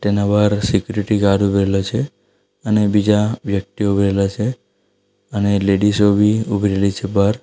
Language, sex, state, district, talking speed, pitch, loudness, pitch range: Gujarati, male, Gujarat, Valsad, 160 wpm, 100 Hz, -17 LUFS, 100-105 Hz